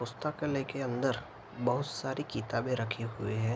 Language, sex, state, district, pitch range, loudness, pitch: Hindi, male, Bihar, Araria, 115-135 Hz, -34 LUFS, 125 Hz